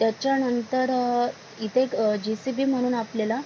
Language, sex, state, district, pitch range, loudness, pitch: Marathi, female, Maharashtra, Sindhudurg, 225-255 Hz, -25 LUFS, 240 Hz